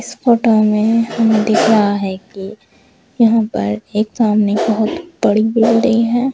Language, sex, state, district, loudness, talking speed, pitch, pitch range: Hindi, female, Uttar Pradesh, Shamli, -14 LUFS, 140 wpm, 220 Hz, 210-230 Hz